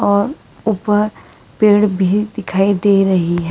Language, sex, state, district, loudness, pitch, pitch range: Hindi, female, Karnataka, Bangalore, -15 LUFS, 205 Hz, 190-210 Hz